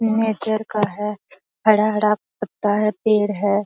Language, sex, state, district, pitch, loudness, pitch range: Hindi, female, Bihar, Araria, 210 Hz, -20 LUFS, 205-215 Hz